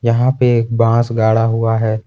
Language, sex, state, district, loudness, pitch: Hindi, male, Jharkhand, Ranchi, -14 LUFS, 115 Hz